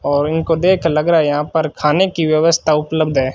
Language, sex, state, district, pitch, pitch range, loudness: Hindi, male, Rajasthan, Bikaner, 155 Hz, 150-165 Hz, -15 LUFS